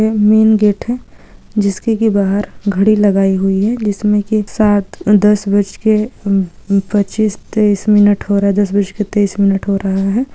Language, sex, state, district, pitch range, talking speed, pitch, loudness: Hindi, female, Andhra Pradesh, Guntur, 200-215 Hz, 185 wpm, 205 Hz, -14 LUFS